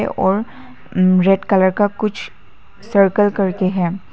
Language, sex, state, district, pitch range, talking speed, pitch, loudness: Hindi, female, Arunachal Pradesh, Papum Pare, 185-205 Hz, 115 wpm, 195 Hz, -16 LUFS